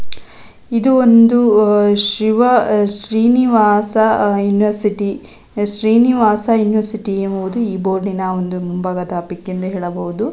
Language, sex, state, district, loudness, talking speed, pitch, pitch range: Kannada, female, Karnataka, Dakshina Kannada, -14 LUFS, 95 wpm, 210 Hz, 190-220 Hz